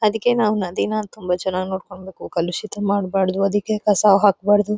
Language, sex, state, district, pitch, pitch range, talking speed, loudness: Kannada, female, Karnataka, Dharwad, 200 Hz, 190-210 Hz, 140 wpm, -20 LUFS